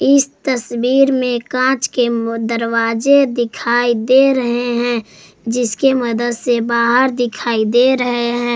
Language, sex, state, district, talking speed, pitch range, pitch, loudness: Hindi, female, Jharkhand, Garhwa, 125 wpm, 235-255 Hz, 240 Hz, -15 LUFS